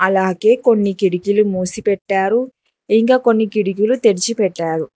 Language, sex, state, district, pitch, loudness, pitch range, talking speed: Telugu, female, Telangana, Hyderabad, 205 Hz, -16 LUFS, 190-225 Hz, 120 wpm